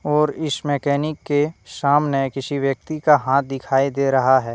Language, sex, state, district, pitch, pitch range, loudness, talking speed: Hindi, male, Jharkhand, Deoghar, 140 Hz, 135-150 Hz, -20 LUFS, 170 wpm